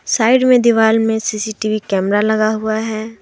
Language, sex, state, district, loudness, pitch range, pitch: Hindi, female, Jharkhand, Deoghar, -15 LUFS, 215-225 Hz, 220 Hz